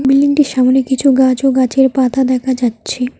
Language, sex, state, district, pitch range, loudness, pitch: Bengali, female, West Bengal, Cooch Behar, 255-270 Hz, -13 LUFS, 265 Hz